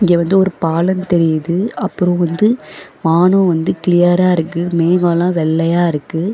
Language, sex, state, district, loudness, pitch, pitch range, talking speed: Tamil, female, Tamil Nadu, Chennai, -14 LUFS, 175 Hz, 165-185 Hz, 125 wpm